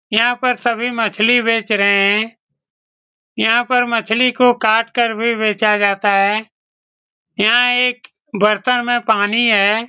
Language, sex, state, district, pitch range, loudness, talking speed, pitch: Hindi, male, Bihar, Saran, 210-245 Hz, -15 LUFS, 145 wpm, 225 Hz